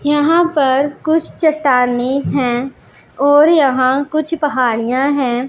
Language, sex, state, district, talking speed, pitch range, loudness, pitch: Hindi, female, Punjab, Pathankot, 110 wpm, 255-300 Hz, -14 LUFS, 280 Hz